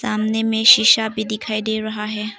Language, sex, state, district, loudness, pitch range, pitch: Hindi, female, Arunachal Pradesh, Papum Pare, -17 LUFS, 215-220 Hz, 220 Hz